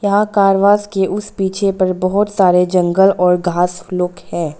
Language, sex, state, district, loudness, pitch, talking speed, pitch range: Hindi, female, Arunachal Pradesh, Longding, -15 LUFS, 190 Hz, 180 wpm, 180-200 Hz